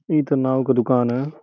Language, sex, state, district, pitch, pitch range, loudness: Bhojpuri, male, Uttar Pradesh, Gorakhpur, 130 Hz, 125-145 Hz, -20 LUFS